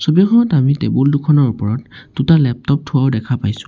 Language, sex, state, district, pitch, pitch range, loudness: Assamese, male, Assam, Sonitpur, 140 Hz, 125-150 Hz, -15 LUFS